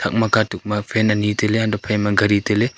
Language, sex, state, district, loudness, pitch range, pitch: Wancho, male, Arunachal Pradesh, Longding, -18 LUFS, 105-110 Hz, 105 Hz